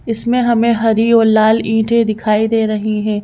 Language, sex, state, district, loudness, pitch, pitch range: Hindi, female, Madhya Pradesh, Bhopal, -14 LUFS, 225 Hz, 215-230 Hz